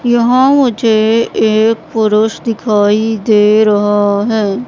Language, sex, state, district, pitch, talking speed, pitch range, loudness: Hindi, female, Madhya Pradesh, Katni, 220 Hz, 105 wpm, 210-230 Hz, -11 LUFS